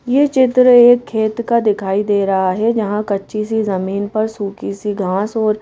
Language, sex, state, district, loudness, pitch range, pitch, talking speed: Hindi, female, Madhya Pradesh, Bhopal, -15 LUFS, 200-235 Hz, 215 Hz, 190 wpm